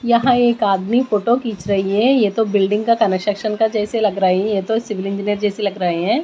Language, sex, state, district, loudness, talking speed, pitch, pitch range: Hindi, female, Bihar, West Champaran, -17 LUFS, 230 wpm, 210 Hz, 200-230 Hz